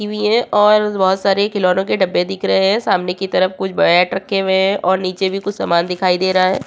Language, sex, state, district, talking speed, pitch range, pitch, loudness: Hindi, female, Uttar Pradesh, Hamirpur, 260 wpm, 185-205 Hz, 190 Hz, -16 LUFS